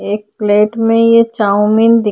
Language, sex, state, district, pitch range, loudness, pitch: Hindi, female, Uttarakhand, Tehri Garhwal, 210-230 Hz, -11 LUFS, 215 Hz